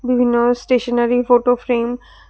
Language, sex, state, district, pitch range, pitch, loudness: Bengali, female, Tripura, West Tripura, 240-250 Hz, 245 Hz, -16 LUFS